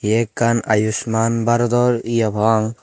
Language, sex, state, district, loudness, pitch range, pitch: Chakma, male, Tripura, Dhalai, -18 LUFS, 110-115 Hz, 115 Hz